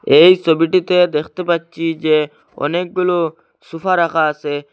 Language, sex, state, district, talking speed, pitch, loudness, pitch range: Bengali, male, Assam, Hailakandi, 115 wpm, 165 Hz, -16 LUFS, 155-180 Hz